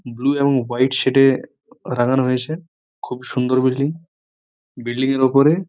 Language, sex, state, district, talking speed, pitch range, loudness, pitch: Bengali, male, West Bengal, Purulia, 160 wpm, 125-140 Hz, -18 LUFS, 130 Hz